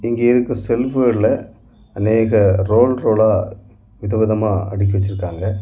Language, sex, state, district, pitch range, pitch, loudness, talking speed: Tamil, male, Tamil Nadu, Kanyakumari, 100-115 Hz, 110 Hz, -17 LUFS, 105 wpm